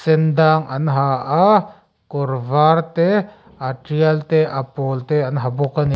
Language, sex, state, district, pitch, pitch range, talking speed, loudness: Mizo, male, Mizoram, Aizawl, 155 Hz, 135-160 Hz, 180 wpm, -17 LUFS